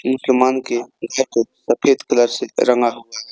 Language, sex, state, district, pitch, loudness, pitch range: Hindi, male, Jharkhand, Deoghar, 120 Hz, -18 LUFS, 120-130 Hz